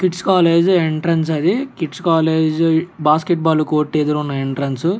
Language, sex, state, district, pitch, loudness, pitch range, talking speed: Telugu, male, Andhra Pradesh, Guntur, 160 Hz, -17 LUFS, 155-175 Hz, 145 wpm